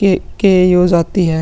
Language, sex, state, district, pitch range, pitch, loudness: Hindi, male, Chhattisgarh, Sukma, 170-190 Hz, 180 Hz, -12 LUFS